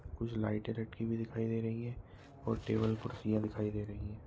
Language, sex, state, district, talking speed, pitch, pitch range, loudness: Hindi, male, Goa, North and South Goa, 210 wpm, 110 Hz, 105-115 Hz, -38 LUFS